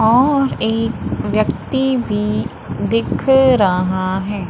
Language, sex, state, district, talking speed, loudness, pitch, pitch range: Hindi, female, Madhya Pradesh, Umaria, 95 wpm, -17 LUFS, 225 Hz, 200-265 Hz